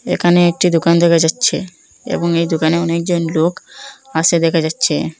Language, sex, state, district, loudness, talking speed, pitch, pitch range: Bengali, female, Assam, Hailakandi, -15 LUFS, 150 wpm, 170 Hz, 165-175 Hz